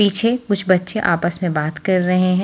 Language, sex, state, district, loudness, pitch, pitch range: Hindi, female, Haryana, Jhajjar, -17 LUFS, 185 Hz, 175-200 Hz